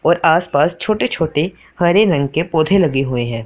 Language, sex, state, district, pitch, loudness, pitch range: Hindi, male, Punjab, Pathankot, 165 Hz, -16 LUFS, 145-180 Hz